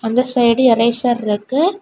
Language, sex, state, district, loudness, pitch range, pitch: Tamil, female, Tamil Nadu, Kanyakumari, -15 LUFS, 230-255 Hz, 240 Hz